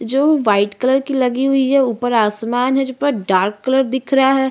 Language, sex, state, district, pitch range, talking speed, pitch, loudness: Hindi, female, Chhattisgarh, Bastar, 230-270 Hz, 225 wpm, 260 Hz, -16 LUFS